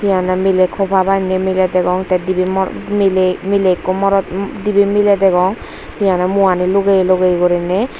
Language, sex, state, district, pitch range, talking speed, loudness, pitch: Chakma, female, Tripura, Unakoti, 185-195 Hz, 135 wpm, -14 LUFS, 190 Hz